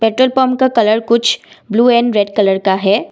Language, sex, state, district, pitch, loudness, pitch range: Hindi, female, Assam, Kamrup Metropolitan, 225 Hz, -13 LUFS, 205-245 Hz